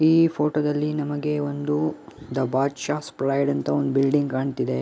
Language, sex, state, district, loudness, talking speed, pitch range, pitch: Kannada, male, Karnataka, Mysore, -24 LUFS, 160 wpm, 135-150 Hz, 145 Hz